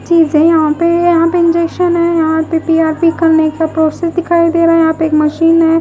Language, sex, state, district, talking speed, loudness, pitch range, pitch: Hindi, female, Bihar, West Champaran, 235 wpm, -11 LUFS, 320-335 Hz, 330 Hz